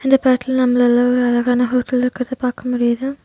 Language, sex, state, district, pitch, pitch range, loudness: Tamil, female, Tamil Nadu, Nilgiris, 250 Hz, 245-255 Hz, -17 LUFS